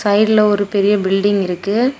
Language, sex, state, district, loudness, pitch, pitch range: Tamil, female, Tamil Nadu, Kanyakumari, -15 LUFS, 205 Hz, 200-215 Hz